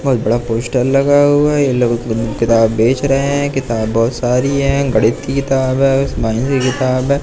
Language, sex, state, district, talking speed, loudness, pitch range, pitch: Hindi, male, Madhya Pradesh, Katni, 190 wpm, -14 LUFS, 115-140 Hz, 130 Hz